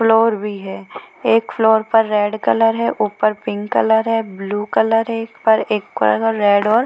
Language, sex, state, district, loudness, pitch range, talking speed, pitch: Hindi, female, Chhattisgarh, Bilaspur, -17 LUFS, 205-225 Hz, 210 wpm, 220 Hz